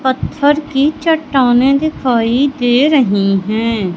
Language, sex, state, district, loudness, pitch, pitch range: Hindi, female, Madhya Pradesh, Katni, -13 LUFS, 260 Hz, 230-290 Hz